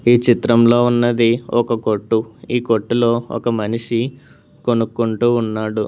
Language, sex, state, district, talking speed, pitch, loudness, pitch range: Telugu, male, Telangana, Hyderabad, 110 wpm, 115 Hz, -17 LUFS, 115-120 Hz